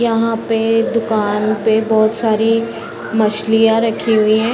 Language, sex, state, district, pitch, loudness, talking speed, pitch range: Hindi, female, Bihar, Sitamarhi, 225 Hz, -15 LUFS, 130 wpm, 215-225 Hz